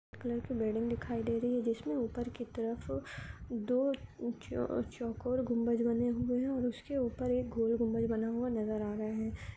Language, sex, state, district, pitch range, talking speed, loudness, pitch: Hindi, female, Uttar Pradesh, Ghazipur, 230-245 Hz, 165 wpm, -35 LUFS, 235 Hz